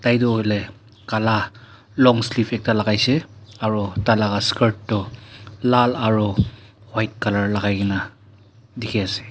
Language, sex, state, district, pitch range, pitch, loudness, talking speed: Nagamese, male, Nagaland, Dimapur, 105-115 Hz, 110 Hz, -20 LUFS, 120 wpm